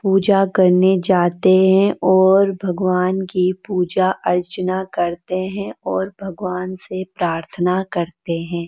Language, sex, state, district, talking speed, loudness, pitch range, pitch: Hindi, female, Uttarakhand, Uttarkashi, 115 wpm, -18 LUFS, 180-190 Hz, 185 Hz